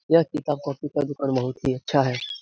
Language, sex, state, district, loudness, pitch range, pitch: Hindi, male, Bihar, Supaul, -25 LUFS, 130-150 Hz, 140 Hz